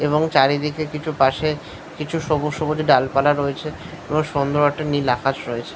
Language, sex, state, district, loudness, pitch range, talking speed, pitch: Bengali, male, West Bengal, Paschim Medinipur, -20 LUFS, 140-155 Hz, 155 wpm, 150 Hz